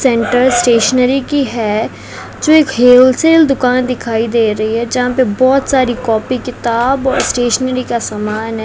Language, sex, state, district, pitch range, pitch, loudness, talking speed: Hindi, female, Rajasthan, Bikaner, 230-260 Hz, 250 Hz, -12 LUFS, 150 wpm